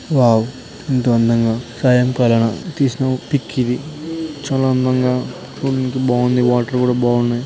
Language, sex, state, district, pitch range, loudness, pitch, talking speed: Telugu, male, Telangana, Karimnagar, 120-130 Hz, -17 LUFS, 125 Hz, 115 wpm